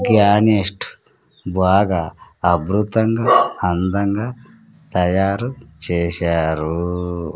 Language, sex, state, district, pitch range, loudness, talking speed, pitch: Telugu, male, Andhra Pradesh, Sri Satya Sai, 85-105 Hz, -18 LUFS, 50 wpm, 95 Hz